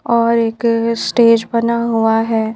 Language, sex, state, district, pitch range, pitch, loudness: Hindi, female, Madhya Pradesh, Bhopal, 225-235 Hz, 230 Hz, -14 LUFS